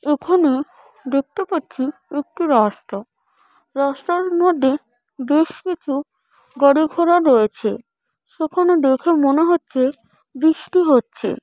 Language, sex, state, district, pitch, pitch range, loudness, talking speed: Bengali, female, West Bengal, Purulia, 290 Hz, 265-340 Hz, -18 LUFS, 105 wpm